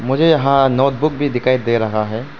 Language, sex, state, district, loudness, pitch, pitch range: Hindi, male, Arunachal Pradesh, Papum Pare, -16 LUFS, 135 Hz, 120-140 Hz